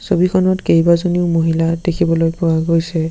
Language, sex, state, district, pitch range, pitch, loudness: Assamese, male, Assam, Sonitpur, 165-175 Hz, 165 Hz, -15 LUFS